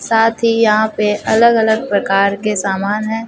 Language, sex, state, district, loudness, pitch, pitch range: Hindi, female, Chhattisgarh, Raipur, -14 LUFS, 215 Hz, 205-225 Hz